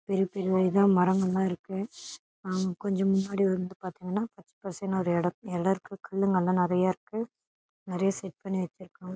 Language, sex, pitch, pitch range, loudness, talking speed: Tamil, female, 190 Hz, 185-195 Hz, -29 LUFS, 145 wpm